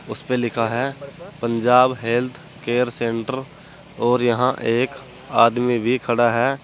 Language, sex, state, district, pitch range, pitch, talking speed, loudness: Hindi, male, Uttar Pradesh, Saharanpur, 120-135 Hz, 125 Hz, 135 wpm, -20 LUFS